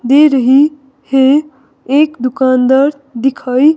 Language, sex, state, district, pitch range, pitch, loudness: Hindi, female, Himachal Pradesh, Shimla, 260-285 Hz, 270 Hz, -11 LUFS